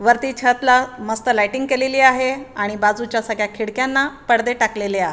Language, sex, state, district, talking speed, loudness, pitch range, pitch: Marathi, female, Maharashtra, Aurangabad, 165 wpm, -18 LUFS, 215-260 Hz, 245 Hz